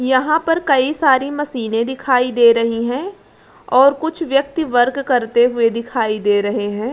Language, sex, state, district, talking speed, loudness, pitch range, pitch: Hindi, female, Bihar, Araria, 155 wpm, -16 LUFS, 230-280 Hz, 255 Hz